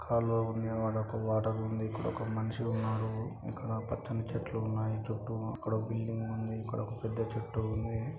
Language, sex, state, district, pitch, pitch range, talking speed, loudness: Telugu, male, Andhra Pradesh, Guntur, 110 Hz, 110-115 Hz, 155 wpm, -35 LUFS